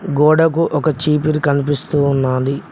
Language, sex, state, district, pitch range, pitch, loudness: Telugu, male, Telangana, Mahabubabad, 140-155 Hz, 150 Hz, -16 LUFS